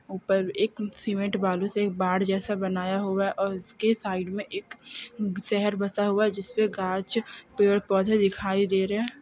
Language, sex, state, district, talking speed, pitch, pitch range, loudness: Hindi, female, Andhra Pradesh, Guntur, 170 wpm, 200 Hz, 195-210 Hz, -27 LUFS